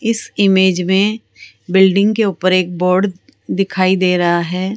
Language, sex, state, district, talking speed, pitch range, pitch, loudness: Hindi, female, Rajasthan, Jaipur, 150 wpm, 185-200 Hz, 190 Hz, -14 LUFS